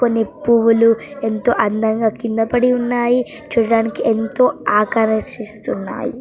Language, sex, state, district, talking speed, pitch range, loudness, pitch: Telugu, female, Andhra Pradesh, Srikakulam, 95 wpm, 220-245 Hz, -17 LUFS, 230 Hz